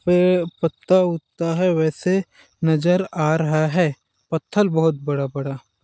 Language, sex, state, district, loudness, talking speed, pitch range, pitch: Hindi, male, Chhattisgarh, Balrampur, -20 LUFS, 135 wpm, 150-180 Hz, 160 Hz